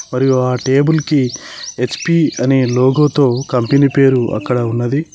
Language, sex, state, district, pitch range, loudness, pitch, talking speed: Telugu, male, Telangana, Mahabubabad, 125-140 Hz, -14 LUFS, 130 Hz, 140 wpm